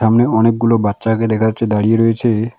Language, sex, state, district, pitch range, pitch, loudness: Bengali, male, West Bengal, Alipurduar, 110-115 Hz, 115 Hz, -14 LUFS